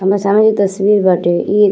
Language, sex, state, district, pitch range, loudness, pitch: Bhojpuri, female, Uttar Pradesh, Ghazipur, 190-205 Hz, -13 LUFS, 200 Hz